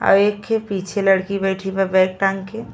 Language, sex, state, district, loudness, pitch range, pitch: Bhojpuri, female, Uttar Pradesh, Ghazipur, -19 LUFS, 190-205 Hz, 195 Hz